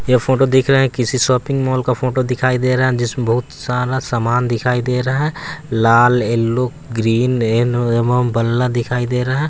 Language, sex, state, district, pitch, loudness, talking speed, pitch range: Hindi, male, Bihar, West Champaran, 125 Hz, -16 LUFS, 185 wpm, 120-130 Hz